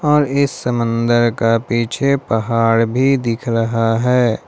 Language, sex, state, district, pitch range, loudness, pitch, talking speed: Hindi, male, Jharkhand, Ranchi, 115-130 Hz, -16 LUFS, 120 Hz, 135 wpm